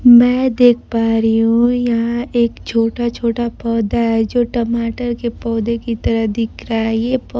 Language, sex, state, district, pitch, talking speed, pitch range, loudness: Hindi, female, Bihar, Kaimur, 235 Hz, 180 wpm, 230-240 Hz, -16 LUFS